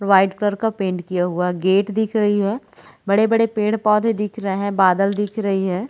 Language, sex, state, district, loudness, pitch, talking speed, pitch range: Hindi, female, Chhattisgarh, Bilaspur, -19 LUFS, 200 Hz, 205 wpm, 190-215 Hz